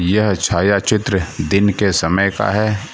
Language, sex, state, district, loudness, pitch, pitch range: Hindi, male, Bihar, Gaya, -16 LUFS, 100 Hz, 95-105 Hz